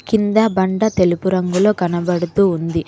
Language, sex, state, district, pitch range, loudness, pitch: Telugu, female, Telangana, Mahabubabad, 175-205 Hz, -16 LUFS, 185 Hz